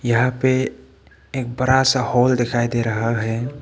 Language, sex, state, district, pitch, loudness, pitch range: Hindi, male, Arunachal Pradesh, Papum Pare, 125 Hz, -19 LUFS, 120-130 Hz